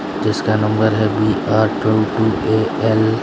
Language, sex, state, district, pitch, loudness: Hindi, male, Bihar, West Champaran, 110 Hz, -16 LUFS